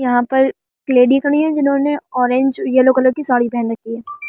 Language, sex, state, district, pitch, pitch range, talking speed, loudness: Hindi, female, Delhi, New Delhi, 260 Hz, 245-285 Hz, 210 wpm, -15 LUFS